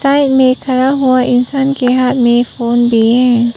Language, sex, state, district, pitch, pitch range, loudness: Hindi, female, Arunachal Pradesh, Papum Pare, 250 Hz, 240-265 Hz, -11 LUFS